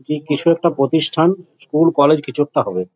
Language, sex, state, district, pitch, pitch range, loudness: Bengali, male, West Bengal, Jhargram, 150 Hz, 145-165 Hz, -16 LUFS